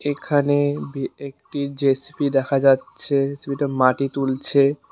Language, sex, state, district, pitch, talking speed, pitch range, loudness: Bengali, male, West Bengal, Cooch Behar, 140 Hz, 100 wpm, 135-145 Hz, -21 LUFS